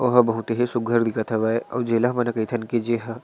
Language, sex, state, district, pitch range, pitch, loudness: Chhattisgarhi, male, Chhattisgarh, Sarguja, 115-120 Hz, 120 Hz, -23 LUFS